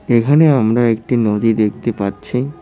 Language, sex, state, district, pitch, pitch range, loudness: Bengali, male, West Bengal, Cooch Behar, 115 Hz, 110-125 Hz, -15 LUFS